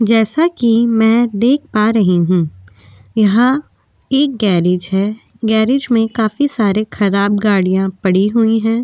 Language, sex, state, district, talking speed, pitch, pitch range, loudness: Hindi, female, Goa, North and South Goa, 135 wpm, 220 Hz, 195-235 Hz, -14 LUFS